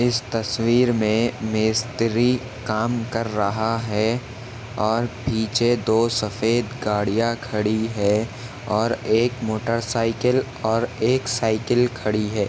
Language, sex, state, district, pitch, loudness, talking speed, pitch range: Hindi, male, Maharashtra, Nagpur, 115 Hz, -22 LUFS, 110 wpm, 110-120 Hz